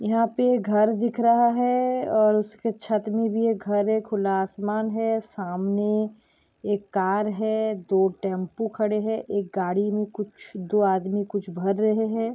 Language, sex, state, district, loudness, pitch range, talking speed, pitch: Hindi, female, Goa, North and South Goa, -24 LUFS, 200-220 Hz, 170 wpm, 210 Hz